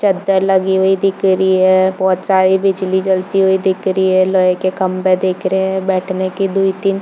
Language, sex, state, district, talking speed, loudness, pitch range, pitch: Hindi, female, Chhattisgarh, Bilaspur, 215 wpm, -14 LUFS, 185-190 Hz, 190 Hz